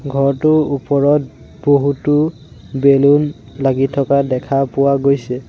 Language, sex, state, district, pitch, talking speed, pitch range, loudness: Assamese, male, Assam, Sonitpur, 140 Hz, 100 wpm, 135-145 Hz, -15 LUFS